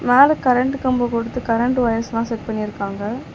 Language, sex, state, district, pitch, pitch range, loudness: Tamil, female, Tamil Nadu, Chennai, 240 Hz, 230-250 Hz, -19 LUFS